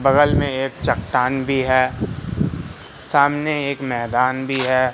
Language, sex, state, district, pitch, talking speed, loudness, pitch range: Hindi, male, Madhya Pradesh, Katni, 130 Hz, 135 wpm, -19 LUFS, 130-140 Hz